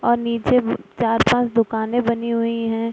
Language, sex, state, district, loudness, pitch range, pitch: Hindi, female, Bihar, Araria, -20 LUFS, 230-240 Hz, 235 Hz